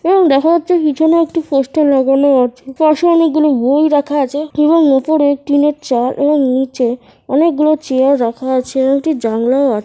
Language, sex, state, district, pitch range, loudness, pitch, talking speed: Bengali, female, West Bengal, Kolkata, 265-310 Hz, -13 LUFS, 285 Hz, 170 wpm